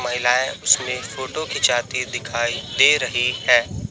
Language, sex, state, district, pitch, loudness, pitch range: Hindi, male, Chhattisgarh, Raipur, 125 Hz, -19 LUFS, 120-130 Hz